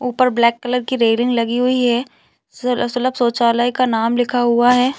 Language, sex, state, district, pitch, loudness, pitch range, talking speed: Hindi, female, Chhattisgarh, Balrampur, 245 Hz, -17 LUFS, 235-250 Hz, 190 wpm